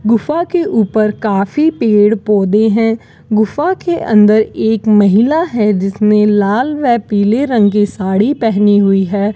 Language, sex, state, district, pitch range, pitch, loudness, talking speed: Hindi, female, Rajasthan, Bikaner, 205-230 Hz, 215 Hz, -12 LUFS, 145 wpm